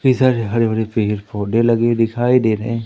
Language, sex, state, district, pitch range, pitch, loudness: Hindi, male, Madhya Pradesh, Umaria, 110-120 Hz, 115 Hz, -17 LUFS